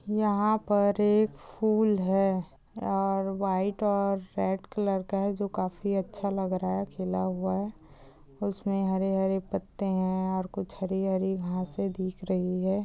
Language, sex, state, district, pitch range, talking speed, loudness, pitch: Hindi, female, Andhra Pradesh, Chittoor, 185-200 Hz, 165 wpm, -29 LUFS, 195 Hz